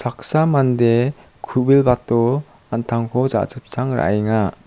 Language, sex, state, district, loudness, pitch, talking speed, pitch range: Garo, male, Meghalaya, South Garo Hills, -18 LUFS, 125 Hz, 65 wpm, 115-135 Hz